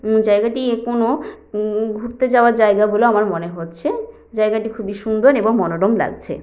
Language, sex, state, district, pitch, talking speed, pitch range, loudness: Bengali, female, West Bengal, Jhargram, 220 Hz, 160 wpm, 210-235 Hz, -17 LUFS